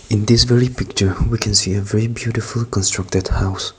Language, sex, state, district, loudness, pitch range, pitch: English, male, Nagaland, Kohima, -17 LUFS, 95-115 Hz, 105 Hz